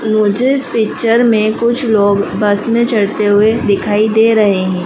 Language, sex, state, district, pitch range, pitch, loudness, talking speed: Hindi, female, Madhya Pradesh, Dhar, 205-230 Hz, 215 Hz, -12 LUFS, 175 wpm